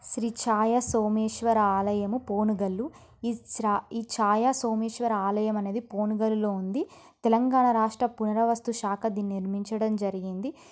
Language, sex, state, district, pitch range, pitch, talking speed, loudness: Telugu, female, Telangana, Nalgonda, 205-235 Hz, 220 Hz, 105 wpm, -27 LUFS